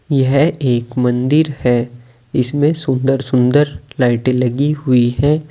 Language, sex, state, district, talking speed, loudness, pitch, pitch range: Hindi, male, Uttar Pradesh, Saharanpur, 120 wpm, -15 LUFS, 130 Hz, 125-145 Hz